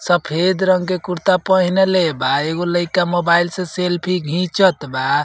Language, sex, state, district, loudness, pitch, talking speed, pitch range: Bhojpuri, male, Uttar Pradesh, Ghazipur, -17 LUFS, 180 Hz, 150 wpm, 170-185 Hz